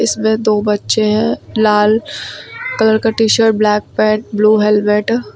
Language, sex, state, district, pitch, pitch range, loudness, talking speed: Hindi, female, Uttar Pradesh, Lucknow, 215 Hz, 210-220 Hz, -13 LUFS, 145 wpm